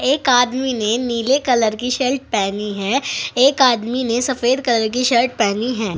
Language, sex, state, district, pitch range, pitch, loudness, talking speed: Hindi, female, Uttar Pradesh, Saharanpur, 230-260 Hz, 245 Hz, -17 LUFS, 180 wpm